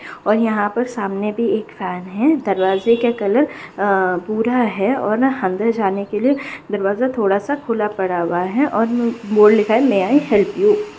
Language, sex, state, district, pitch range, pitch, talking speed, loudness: Hindi, female, Bihar, Bhagalpur, 195-245 Hz, 215 Hz, 190 wpm, -17 LUFS